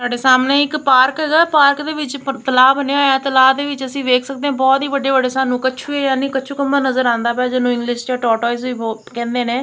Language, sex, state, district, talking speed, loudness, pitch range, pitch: Punjabi, female, Punjab, Kapurthala, 230 wpm, -16 LUFS, 250-280 Hz, 265 Hz